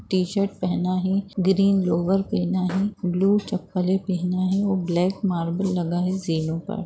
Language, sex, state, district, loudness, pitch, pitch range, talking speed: Hindi, female, Bihar, Jamui, -23 LUFS, 185 Hz, 180-195 Hz, 150 wpm